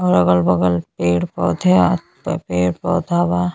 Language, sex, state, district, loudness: Bhojpuri, female, Uttar Pradesh, Ghazipur, -17 LUFS